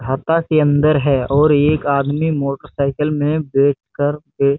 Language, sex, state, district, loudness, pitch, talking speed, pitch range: Hindi, male, Chhattisgarh, Bastar, -16 LUFS, 145 Hz, 170 wpm, 140-150 Hz